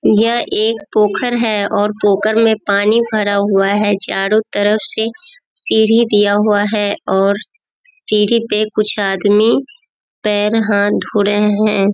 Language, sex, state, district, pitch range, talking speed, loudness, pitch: Hindi, female, Bihar, Kishanganj, 205-225 Hz, 140 wpm, -14 LUFS, 210 Hz